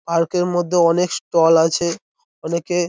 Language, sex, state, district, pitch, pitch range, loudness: Bengali, male, West Bengal, North 24 Parganas, 170 Hz, 165-180 Hz, -18 LUFS